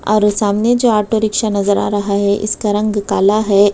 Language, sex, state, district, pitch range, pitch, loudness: Hindi, female, Uttar Pradesh, Budaun, 200-215 Hz, 210 Hz, -14 LUFS